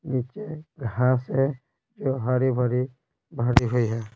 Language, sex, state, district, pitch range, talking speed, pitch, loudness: Hindi, male, Bihar, Patna, 125-135 Hz, 130 wpm, 130 Hz, -25 LUFS